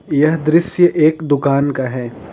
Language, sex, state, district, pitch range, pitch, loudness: Hindi, male, Jharkhand, Ranchi, 140-165 Hz, 150 Hz, -15 LUFS